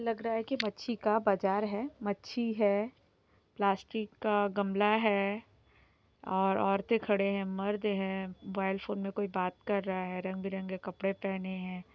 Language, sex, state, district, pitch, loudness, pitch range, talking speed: Hindi, female, Jharkhand, Sahebganj, 200 Hz, -33 LUFS, 190-210 Hz, 155 wpm